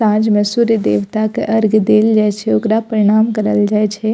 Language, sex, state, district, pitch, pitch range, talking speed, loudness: Maithili, female, Bihar, Purnia, 215 Hz, 210-220 Hz, 200 wpm, -14 LUFS